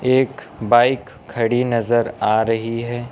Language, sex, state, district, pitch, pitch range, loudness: Hindi, male, Uttar Pradesh, Lucknow, 120 Hz, 115-125 Hz, -19 LUFS